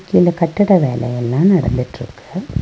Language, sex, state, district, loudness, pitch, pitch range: Tamil, female, Tamil Nadu, Nilgiris, -15 LUFS, 150 Hz, 125-185 Hz